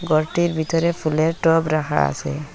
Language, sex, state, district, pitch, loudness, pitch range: Bengali, female, Assam, Hailakandi, 160 Hz, -20 LUFS, 155-165 Hz